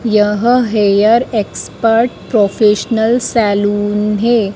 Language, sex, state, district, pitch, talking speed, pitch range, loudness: Hindi, female, Madhya Pradesh, Dhar, 215 Hz, 80 wpm, 210-230 Hz, -13 LUFS